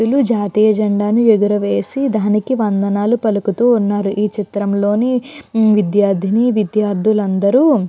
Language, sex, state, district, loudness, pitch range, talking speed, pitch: Telugu, female, Andhra Pradesh, Chittoor, -15 LUFS, 205-230 Hz, 120 wpm, 210 Hz